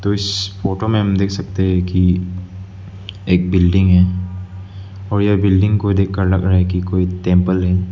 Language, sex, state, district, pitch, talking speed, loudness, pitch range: Hindi, male, Arunachal Pradesh, Lower Dibang Valley, 95 Hz, 175 wpm, -16 LUFS, 90-95 Hz